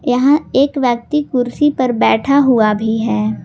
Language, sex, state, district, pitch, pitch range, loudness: Hindi, female, Jharkhand, Garhwa, 250 Hz, 225-280 Hz, -14 LUFS